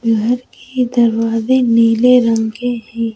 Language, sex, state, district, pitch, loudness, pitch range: Hindi, female, Madhya Pradesh, Bhopal, 230 Hz, -14 LUFS, 225-245 Hz